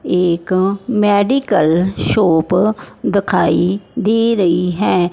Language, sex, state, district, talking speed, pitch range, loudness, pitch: Hindi, female, Punjab, Fazilka, 80 wpm, 175-210 Hz, -15 LUFS, 185 Hz